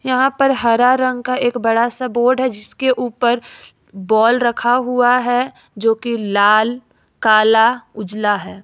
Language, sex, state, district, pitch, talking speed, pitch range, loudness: Hindi, female, Jharkhand, Ranchi, 240 Hz, 145 wpm, 220-250 Hz, -16 LUFS